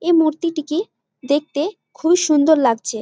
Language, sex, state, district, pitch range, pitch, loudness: Bengali, female, West Bengal, Jalpaiguri, 285-335 Hz, 310 Hz, -18 LUFS